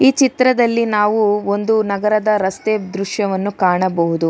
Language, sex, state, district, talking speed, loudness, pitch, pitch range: Kannada, female, Karnataka, Bangalore, 110 wpm, -16 LUFS, 210 Hz, 190-220 Hz